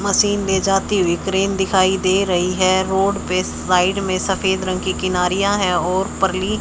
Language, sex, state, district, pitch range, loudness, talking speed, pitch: Hindi, male, Haryana, Charkhi Dadri, 185-195 Hz, -18 LUFS, 180 wpm, 190 Hz